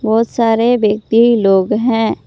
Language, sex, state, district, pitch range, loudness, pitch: Hindi, female, Jharkhand, Palamu, 215-230 Hz, -13 LUFS, 225 Hz